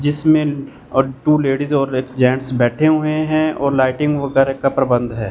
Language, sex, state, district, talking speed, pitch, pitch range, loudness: Hindi, male, Punjab, Fazilka, 180 wpm, 135 Hz, 130-150 Hz, -17 LUFS